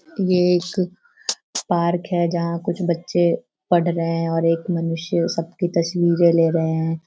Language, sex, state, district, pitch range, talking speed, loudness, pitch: Hindi, female, Bihar, Sitamarhi, 165-175 Hz, 150 wpm, -21 LUFS, 170 Hz